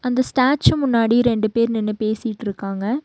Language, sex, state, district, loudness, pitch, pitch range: Tamil, female, Tamil Nadu, Nilgiris, -19 LUFS, 230 Hz, 215-250 Hz